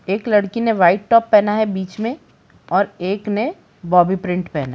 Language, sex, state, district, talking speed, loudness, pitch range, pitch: Hindi, male, Jharkhand, Jamtara, 200 wpm, -17 LUFS, 185-220 Hz, 200 Hz